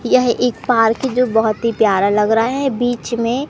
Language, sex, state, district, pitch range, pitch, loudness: Hindi, male, Madhya Pradesh, Katni, 225-250 Hz, 235 Hz, -16 LUFS